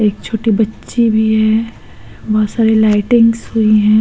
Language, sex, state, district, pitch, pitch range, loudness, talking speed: Hindi, female, Uttar Pradesh, Hamirpur, 220 Hz, 215-225 Hz, -13 LUFS, 150 wpm